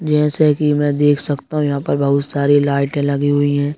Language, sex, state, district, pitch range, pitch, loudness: Hindi, male, Madhya Pradesh, Bhopal, 140-150 Hz, 145 Hz, -16 LUFS